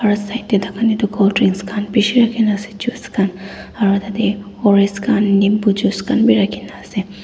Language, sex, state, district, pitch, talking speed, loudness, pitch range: Nagamese, female, Nagaland, Dimapur, 205 Hz, 175 wpm, -16 LUFS, 200-225 Hz